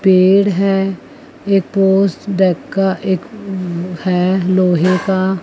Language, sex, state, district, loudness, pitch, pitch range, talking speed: Hindi, female, Chandigarh, Chandigarh, -15 LUFS, 190 Hz, 185-195 Hz, 75 wpm